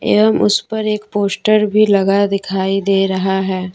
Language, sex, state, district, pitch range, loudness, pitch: Hindi, female, Jharkhand, Deoghar, 190-205 Hz, -15 LUFS, 195 Hz